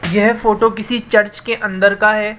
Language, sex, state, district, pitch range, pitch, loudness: Hindi, male, Rajasthan, Jaipur, 210-225 Hz, 215 Hz, -15 LUFS